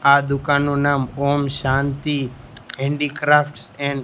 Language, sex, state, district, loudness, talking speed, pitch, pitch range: Gujarati, male, Gujarat, Gandhinagar, -20 LUFS, 120 wpm, 140 Hz, 135-145 Hz